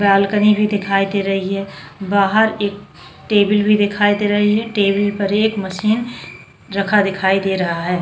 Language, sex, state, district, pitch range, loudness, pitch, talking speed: Hindi, female, Maharashtra, Chandrapur, 195-210 Hz, -16 LUFS, 200 Hz, 165 wpm